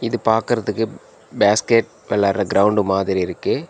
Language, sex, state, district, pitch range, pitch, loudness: Tamil, male, Tamil Nadu, Nilgiris, 100-115 Hz, 110 Hz, -19 LUFS